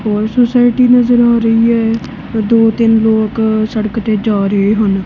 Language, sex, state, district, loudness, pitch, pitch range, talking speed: Punjabi, female, Punjab, Kapurthala, -12 LUFS, 225 Hz, 215-235 Hz, 165 wpm